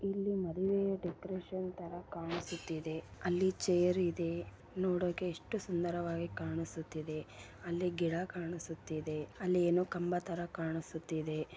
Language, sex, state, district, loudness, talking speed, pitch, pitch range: Kannada, female, Karnataka, Bellary, -37 LUFS, 105 wpm, 175 Hz, 165-180 Hz